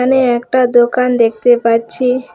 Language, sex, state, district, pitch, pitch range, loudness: Bengali, female, West Bengal, Alipurduar, 245 Hz, 235-255 Hz, -12 LUFS